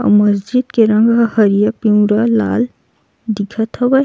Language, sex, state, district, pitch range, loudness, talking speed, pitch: Chhattisgarhi, female, Chhattisgarh, Sukma, 210-235 Hz, -14 LUFS, 135 wpm, 220 Hz